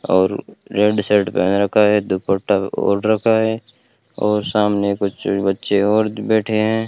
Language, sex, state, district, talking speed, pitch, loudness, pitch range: Hindi, male, Rajasthan, Bikaner, 155 wpm, 105 Hz, -18 LUFS, 100-110 Hz